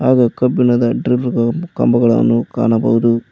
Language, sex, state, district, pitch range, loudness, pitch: Kannada, male, Karnataka, Koppal, 115-125 Hz, -14 LUFS, 120 Hz